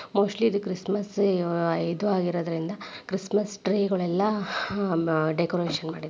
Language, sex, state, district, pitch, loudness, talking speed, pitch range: Kannada, female, Karnataka, Dharwad, 190 Hz, -26 LUFS, 110 wpm, 170-200 Hz